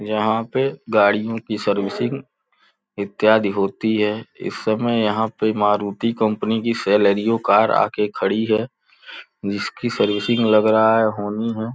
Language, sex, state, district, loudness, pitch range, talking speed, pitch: Hindi, male, Uttar Pradesh, Gorakhpur, -19 LUFS, 105-115 Hz, 150 wpm, 110 Hz